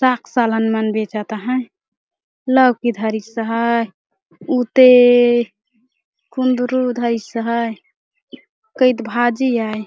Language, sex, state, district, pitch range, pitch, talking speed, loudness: Chhattisgarhi, female, Chhattisgarh, Jashpur, 225-255 Hz, 240 Hz, 105 wpm, -16 LUFS